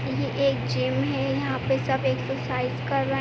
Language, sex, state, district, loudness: Hindi, female, Uttar Pradesh, Jyotiba Phule Nagar, -26 LUFS